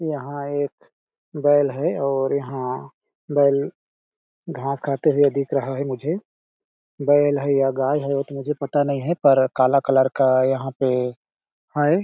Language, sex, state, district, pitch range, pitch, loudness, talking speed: Hindi, male, Chhattisgarh, Balrampur, 135-145 Hz, 140 Hz, -21 LUFS, 150 wpm